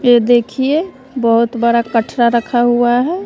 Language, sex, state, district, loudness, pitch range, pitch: Hindi, female, Bihar, West Champaran, -14 LUFS, 235-260 Hz, 240 Hz